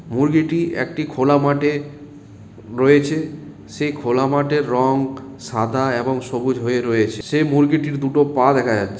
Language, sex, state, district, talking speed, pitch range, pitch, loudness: Bengali, male, West Bengal, Malda, 135 wpm, 125-145 Hz, 135 Hz, -18 LUFS